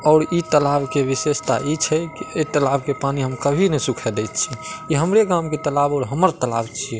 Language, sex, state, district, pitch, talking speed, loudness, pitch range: Maithili, male, Bihar, Madhepura, 145 Hz, 230 wpm, -20 LUFS, 135-160 Hz